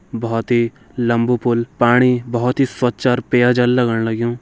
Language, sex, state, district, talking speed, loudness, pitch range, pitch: Hindi, male, Uttarakhand, Tehri Garhwal, 175 wpm, -17 LUFS, 115-125 Hz, 120 Hz